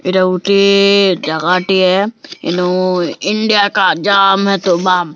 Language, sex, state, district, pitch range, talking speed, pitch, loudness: Odia, female, Odisha, Sambalpur, 180-200 Hz, 60 wpm, 190 Hz, -12 LUFS